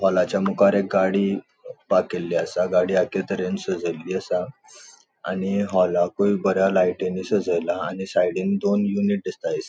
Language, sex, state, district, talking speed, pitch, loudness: Konkani, male, Goa, North and South Goa, 135 wpm, 100 Hz, -22 LUFS